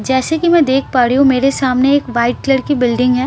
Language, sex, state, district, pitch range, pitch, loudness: Hindi, female, Bihar, Patna, 250-275 Hz, 260 Hz, -13 LUFS